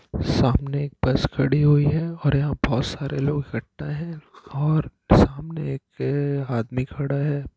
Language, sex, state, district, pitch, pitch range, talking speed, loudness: Hindi, male, Bihar, Gopalganj, 140 Hz, 135-150 Hz, 160 wpm, -23 LUFS